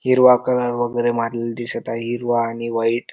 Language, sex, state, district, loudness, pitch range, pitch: Marathi, male, Maharashtra, Dhule, -20 LUFS, 115-120 Hz, 120 Hz